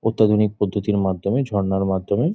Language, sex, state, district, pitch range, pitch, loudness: Bengali, male, West Bengal, Jhargram, 95-110 Hz, 105 Hz, -20 LUFS